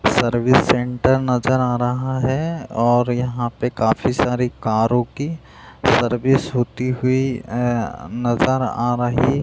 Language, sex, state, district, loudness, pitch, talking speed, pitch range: Hindi, male, Bihar, Jahanabad, -19 LUFS, 125 Hz, 135 wpm, 120-130 Hz